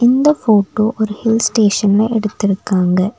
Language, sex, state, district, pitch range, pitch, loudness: Tamil, female, Tamil Nadu, Nilgiris, 200-225 Hz, 215 Hz, -14 LUFS